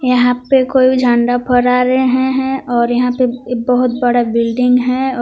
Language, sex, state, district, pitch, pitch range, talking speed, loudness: Hindi, female, Jharkhand, Palamu, 250 Hz, 245-255 Hz, 170 wpm, -13 LUFS